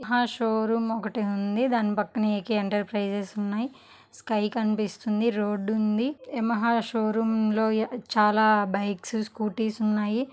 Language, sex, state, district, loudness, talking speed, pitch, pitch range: Telugu, female, Andhra Pradesh, Chittoor, -26 LUFS, 105 wpm, 220 Hz, 210-230 Hz